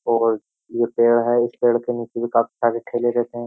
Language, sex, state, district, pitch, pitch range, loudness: Hindi, male, Uttar Pradesh, Jyotiba Phule Nagar, 120 Hz, 115-120 Hz, -20 LUFS